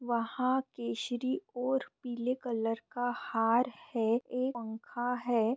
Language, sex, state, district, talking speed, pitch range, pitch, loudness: Hindi, female, Bihar, Bhagalpur, 120 wpm, 230-255 Hz, 245 Hz, -33 LUFS